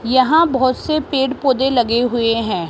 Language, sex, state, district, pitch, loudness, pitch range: Hindi, female, Rajasthan, Jaipur, 260 Hz, -16 LUFS, 235-270 Hz